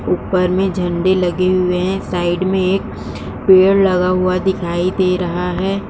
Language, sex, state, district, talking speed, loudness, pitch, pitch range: Hindi, female, Uttar Pradesh, Jyotiba Phule Nagar, 165 wpm, -16 LUFS, 185 Hz, 180-190 Hz